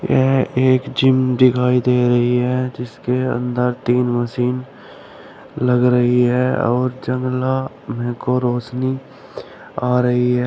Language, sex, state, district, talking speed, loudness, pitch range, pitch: Hindi, male, Uttar Pradesh, Shamli, 125 wpm, -18 LUFS, 125-130 Hz, 125 Hz